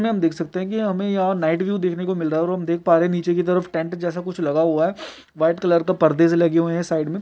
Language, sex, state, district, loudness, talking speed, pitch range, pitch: Hindi, male, Chhattisgarh, Kabirdham, -20 LUFS, 315 wpm, 165-185 Hz, 175 Hz